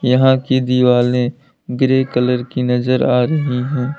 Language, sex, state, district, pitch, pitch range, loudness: Hindi, male, Uttar Pradesh, Lalitpur, 125 Hz, 125-130 Hz, -15 LUFS